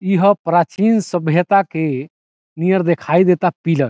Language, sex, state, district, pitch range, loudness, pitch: Bhojpuri, male, Bihar, Saran, 160-190 Hz, -16 LUFS, 175 Hz